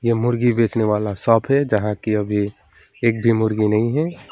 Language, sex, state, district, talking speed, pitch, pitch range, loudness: Hindi, male, West Bengal, Alipurduar, 195 wpm, 110 Hz, 105-120 Hz, -19 LUFS